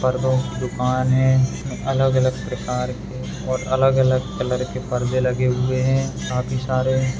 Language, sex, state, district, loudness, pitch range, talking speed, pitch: Hindi, female, Uttar Pradesh, Muzaffarnagar, -21 LUFS, 125-130 Hz, 150 wpm, 130 Hz